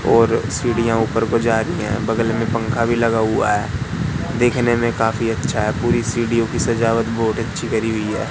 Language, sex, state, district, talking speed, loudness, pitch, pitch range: Hindi, male, Madhya Pradesh, Katni, 200 wpm, -19 LUFS, 115 Hz, 110-115 Hz